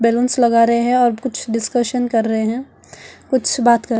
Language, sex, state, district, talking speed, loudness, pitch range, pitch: Hindi, female, Delhi, New Delhi, 195 wpm, -17 LUFS, 230-250 Hz, 235 Hz